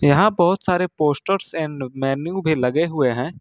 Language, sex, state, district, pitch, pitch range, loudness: Hindi, male, Jharkhand, Ranchi, 155 Hz, 135-180 Hz, -20 LUFS